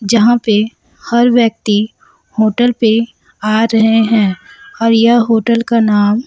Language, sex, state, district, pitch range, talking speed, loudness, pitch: Hindi, female, Chhattisgarh, Raipur, 215-235 Hz, 135 wpm, -12 LUFS, 225 Hz